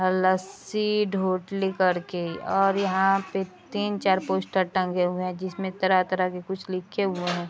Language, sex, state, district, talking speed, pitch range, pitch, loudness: Hindi, female, Bihar, Araria, 145 wpm, 185-195 Hz, 190 Hz, -26 LUFS